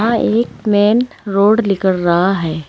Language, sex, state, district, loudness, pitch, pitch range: Hindi, female, Uttar Pradesh, Saharanpur, -14 LUFS, 205 Hz, 185-225 Hz